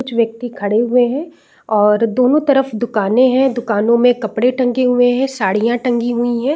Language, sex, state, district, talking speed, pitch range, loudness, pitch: Hindi, female, Chhattisgarh, Raigarh, 185 wpm, 225-255 Hz, -15 LUFS, 240 Hz